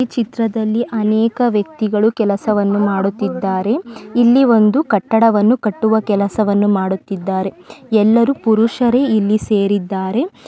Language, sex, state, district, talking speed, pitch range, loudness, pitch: Kannada, female, Karnataka, Mysore, 35 wpm, 200-235 Hz, -15 LUFS, 215 Hz